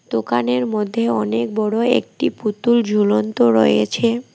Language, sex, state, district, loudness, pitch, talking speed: Bengali, female, West Bengal, Alipurduar, -18 LUFS, 200 Hz, 110 wpm